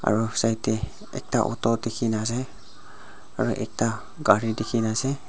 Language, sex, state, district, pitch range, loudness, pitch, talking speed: Nagamese, male, Nagaland, Dimapur, 110-115 Hz, -25 LUFS, 115 Hz, 135 wpm